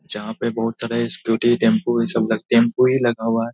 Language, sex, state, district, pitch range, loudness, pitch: Hindi, male, Bihar, Saharsa, 115-120 Hz, -19 LUFS, 115 Hz